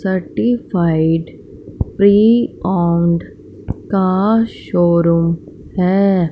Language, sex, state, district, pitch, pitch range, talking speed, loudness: Hindi, female, Punjab, Fazilka, 185 Hz, 170-200 Hz, 55 wpm, -15 LUFS